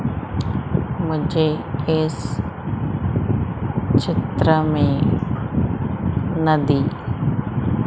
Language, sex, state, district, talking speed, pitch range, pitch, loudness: Hindi, female, Madhya Pradesh, Umaria, 40 wpm, 135-155 Hz, 150 Hz, -21 LUFS